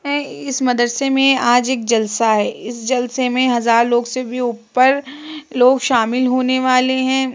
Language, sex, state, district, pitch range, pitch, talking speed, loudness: Hindi, female, Uttar Pradesh, Etah, 240-265 Hz, 255 Hz, 170 wpm, -16 LUFS